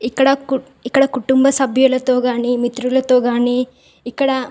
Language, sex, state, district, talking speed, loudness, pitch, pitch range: Telugu, female, Andhra Pradesh, Visakhapatnam, 120 wpm, -16 LUFS, 255 Hz, 245-265 Hz